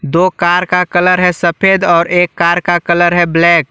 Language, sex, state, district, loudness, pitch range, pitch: Hindi, male, Jharkhand, Garhwa, -11 LUFS, 170-180 Hz, 175 Hz